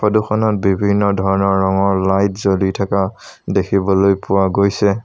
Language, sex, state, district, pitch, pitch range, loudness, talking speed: Assamese, male, Assam, Sonitpur, 100 Hz, 95-100 Hz, -16 LUFS, 130 wpm